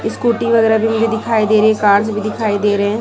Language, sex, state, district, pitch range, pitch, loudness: Hindi, female, Chhattisgarh, Raipur, 210-225 Hz, 220 Hz, -14 LUFS